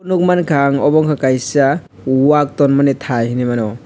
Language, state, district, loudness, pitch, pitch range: Kokborok, Tripura, West Tripura, -14 LUFS, 140 Hz, 130-150 Hz